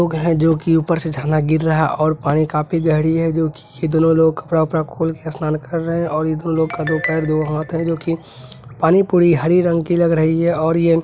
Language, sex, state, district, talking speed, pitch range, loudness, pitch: Hindi, male, Bihar, Araria, 255 wpm, 155-165 Hz, -17 LUFS, 160 Hz